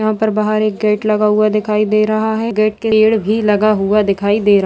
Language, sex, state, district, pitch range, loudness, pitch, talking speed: Hindi, female, Bihar, Begusarai, 210-215 Hz, -14 LUFS, 215 Hz, 270 wpm